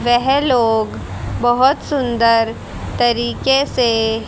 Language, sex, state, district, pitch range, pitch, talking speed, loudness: Hindi, female, Haryana, Jhajjar, 225-260 Hz, 235 Hz, 85 wpm, -16 LUFS